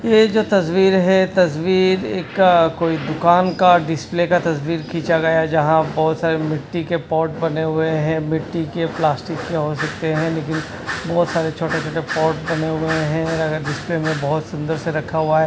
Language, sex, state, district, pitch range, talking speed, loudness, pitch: Hindi, male, Chhattisgarh, Raipur, 155-170 Hz, 190 wpm, -18 LUFS, 160 Hz